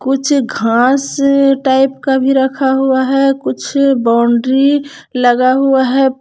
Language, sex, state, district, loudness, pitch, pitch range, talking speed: Hindi, female, Jharkhand, Palamu, -12 LUFS, 270 Hz, 260-275 Hz, 125 wpm